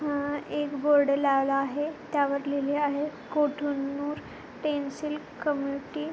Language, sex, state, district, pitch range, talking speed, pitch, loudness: Marathi, female, Maharashtra, Pune, 280-295 Hz, 115 wpm, 285 Hz, -28 LUFS